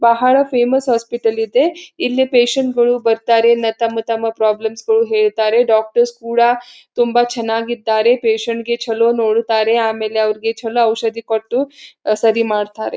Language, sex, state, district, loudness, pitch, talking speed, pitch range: Kannada, female, Karnataka, Belgaum, -16 LUFS, 230 Hz, 140 wpm, 225-245 Hz